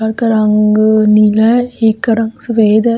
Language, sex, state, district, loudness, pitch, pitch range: Hindi, female, Delhi, New Delhi, -11 LUFS, 220 Hz, 215-230 Hz